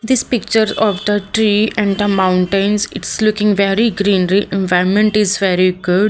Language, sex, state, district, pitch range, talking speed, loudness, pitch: English, female, Haryana, Jhajjar, 190-215 Hz, 155 wpm, -14 LUFS, 205 Hz